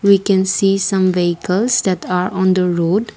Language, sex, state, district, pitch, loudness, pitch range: English, female, Assam, Kamrup Metropolitan, 190 Hz, -16 LUFS, 180-195 Hz